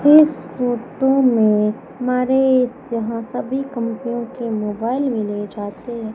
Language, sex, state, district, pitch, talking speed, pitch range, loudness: Hindi, female, Madhya Pradesh, Umaria, 240 Hz, 115 wpm, 225-260 Hz, -19 LUFS